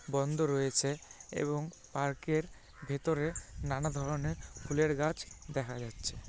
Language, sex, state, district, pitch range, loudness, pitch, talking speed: Bengali, male, West Bengal, Malda, 135-155 Hz, -35 LUFS, 145 Hz, 125 wpm